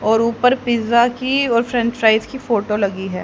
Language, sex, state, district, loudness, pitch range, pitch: Hindi, female, Haryana, Charkhi Dadri, -17 LUFS, 220-245 Hz, 235 Hz